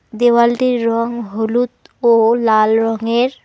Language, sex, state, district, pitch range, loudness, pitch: Bengali, female, West Bengal, Alipurduar, 225-240 Hz, -15 LUFS, 235 Hz